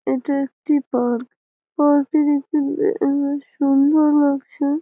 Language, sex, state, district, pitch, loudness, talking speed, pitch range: Bengali, female, West Bengal, Malda, 285 Hz, -19 LUFS, 125 wpm, 275-295 Hz